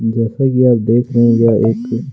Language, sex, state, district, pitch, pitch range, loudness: Hindi, male, Chhattisgarh, Kabirdham, 115 Hz, 115-125 Hz, -13 LUFS